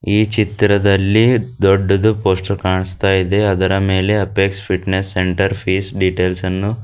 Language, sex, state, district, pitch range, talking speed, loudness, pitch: Kannada, female, Karnataka, Bidar, 95-105 Hz, 125 wpm, -16 LUFS, 95 Hz